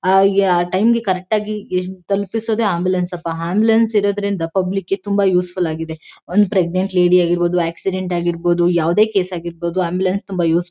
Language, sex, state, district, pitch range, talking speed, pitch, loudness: Kannada, female, Karnataka, Mysore, 175-200 Hz, 155 wpm, 185 Hz, -18 LUFS